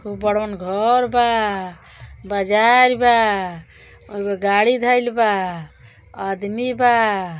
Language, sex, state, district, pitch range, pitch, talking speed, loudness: Bhojpuri, male, Uttar Pradesh, Deoria, 190-240 Hz, 205 Hz, 95 wpm, -17 LUFS